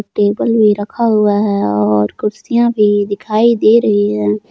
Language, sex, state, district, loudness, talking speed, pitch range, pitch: Hindi, male, Jharkhand, Palamu, -13 LUFS, 160 wpm, 200-220 Hz, 210 Hz